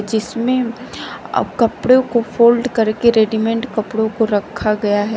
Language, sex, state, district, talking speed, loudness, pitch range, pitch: Hindi, female, Uttar Pradesh, Shamli, 140 wpm, -16 LUFS, 215-240 Hz, 225 Hz